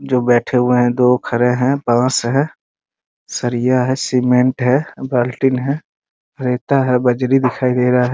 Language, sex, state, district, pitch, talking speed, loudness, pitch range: Hindi, male, Bihar, Muzaffarpur, 125 Hz, 170 wpm, -16 LUFS, 125-130 Hz